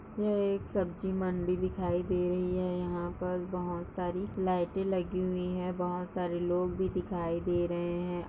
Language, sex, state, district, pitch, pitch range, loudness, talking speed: Hindi, female, Chhattisgarh, Rajnandgaon, 180 Hz, 175-185 Hz, -33 LUFS, 175 wpm